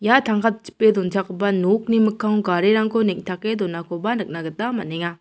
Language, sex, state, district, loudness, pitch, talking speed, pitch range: Garo, female, Meghalaya, South Garo Hills, -21 LUFS, 210 Hz, 140 wpm, 185-220 Hz